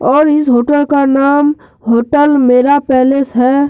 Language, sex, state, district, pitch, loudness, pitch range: Hindi, male, Jharkhand, Deoghar, 275 Hz, -10 LUFS, 255-290 Hz